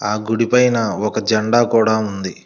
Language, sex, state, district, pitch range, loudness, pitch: Telugu, male, Telangana, Hyderabad, 105-115 Hz, -16 LUFS, 110 Hz